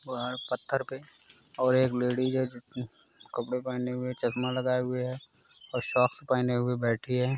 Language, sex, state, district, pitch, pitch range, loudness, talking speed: Hindi, male, Bihar, Gaya, 125 Hz, 125-130 Hz, -30 LUFS, 165 wpm